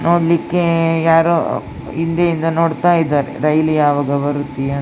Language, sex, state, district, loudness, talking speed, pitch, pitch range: Kannada, female, Karnataka, Dakshina Kannada, -16 LUFS, 125 wpm, 165 Hz, 145-170 Hz